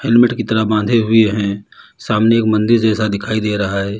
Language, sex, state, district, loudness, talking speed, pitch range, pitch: Hindi, male, Uttar Pradesh, Lalitpur, -15 LUFS, 210 wpm, 105-115 Hz, 110 Hz